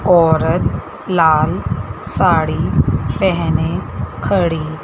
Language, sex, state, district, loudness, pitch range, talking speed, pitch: Hindi, female, Chandigarh, Chandigarh, -16 LUFS, 155-175 Hz, 60 wpm, 165 Hz